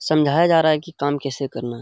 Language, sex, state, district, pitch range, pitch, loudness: Hindi, male, Bihar, Jamui, 140-160 Hz, 145 Hz, -20 LUFS